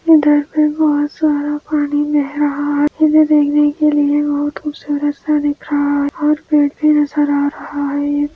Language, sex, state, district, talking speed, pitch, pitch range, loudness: Hindi, female, Andhra Pradesh, Anantapur, 180 wpm, 295 Hz, 290-300 Hz, -15 LUFS